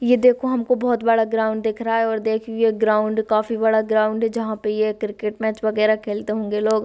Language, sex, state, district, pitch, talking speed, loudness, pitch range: Hindi, female, Bihar, Sitamarhi, 220 Hz, 225 wpm, -20 LUFS, 215-225 Hz